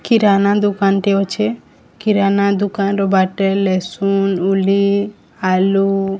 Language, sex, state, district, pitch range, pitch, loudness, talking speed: Odia, female, Odisha, Sambalpur, 195-200 Hz, 195 Hz, -16 LUFS, 105 wpm